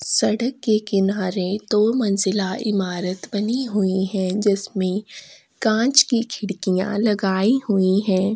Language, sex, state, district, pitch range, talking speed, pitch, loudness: Hindi, female, Chhattisgarh, Sukma, 190-220 Hz, 115 wpm, 205 Hz, -20 LUFS